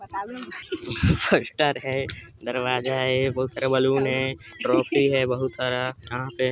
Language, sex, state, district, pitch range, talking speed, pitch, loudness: Hindi, male, Chhattisgarh, Sarguja, 125-135 Hz, 140 wpm, 130 Hz, -24 LUFS